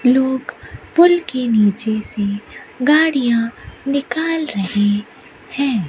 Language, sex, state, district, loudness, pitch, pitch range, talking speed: Hindi, female, Rajasthan, Bikaner, -17 LUFS, 250 Hz, 215-280 Hz, 90 wpm